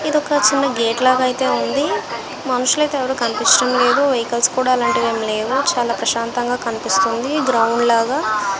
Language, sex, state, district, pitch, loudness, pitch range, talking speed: Telugu, female, Andhra Pradesh, Visakhapatnam, 250 Hz, -17 LUFS, 230-270 Hz, 155 wpm